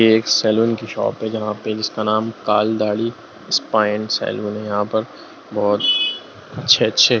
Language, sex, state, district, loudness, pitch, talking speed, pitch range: Hindi, male, Bihar, Lakhisarai, -18 LUFS, 110 Hz, 150 wpm, 105-110 Hz